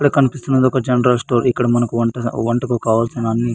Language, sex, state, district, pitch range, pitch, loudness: Telugu, male, Andhra Pradesh, Anantapur, 115-130 Hz, 120 Hz, -17 LUFS